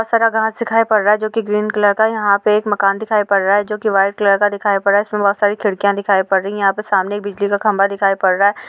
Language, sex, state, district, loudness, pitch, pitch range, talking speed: Hindi, female, Bihar, Saharsa, -15 LUFS, 205 Hz, 200-210 Hz, 330 wpm